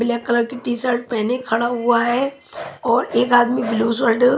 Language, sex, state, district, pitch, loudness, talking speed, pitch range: Hindi, female, Himachal Pradesh, Shimla, 240 Hz, -19 LUFS, 190 wpm, 235-245 Hz